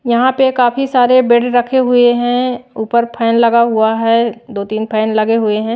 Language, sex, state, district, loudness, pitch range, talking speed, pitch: Hindi, female, Maharashtra, Washim, -13 LUFS, 225-245 Hz, 185 wpm, 235 Hz